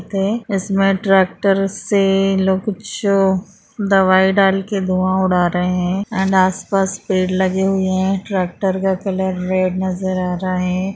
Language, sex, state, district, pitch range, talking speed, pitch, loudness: Hindi, female, Bihar, Bhagalpur, 185-195 Hz, 150 wpm, 190 Hz, -17 LUFS